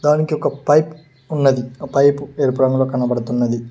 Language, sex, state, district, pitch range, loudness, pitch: Telugu, male, Telangana, Mahabubabad, 125-150 Hz, -17 LUFS, 135 Hz